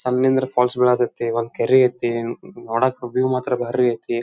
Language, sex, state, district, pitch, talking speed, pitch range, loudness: Kannada, male, Karnataka, Dharwad, 125 Hz, 140 wpm, 120-130 Hz, -20 LUFS